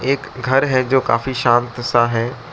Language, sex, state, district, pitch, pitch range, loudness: Hindi, male, Arunachal Pradesh, Lower Dibang Valley, 125 Hz, 120-130 Hz, -17 LUFS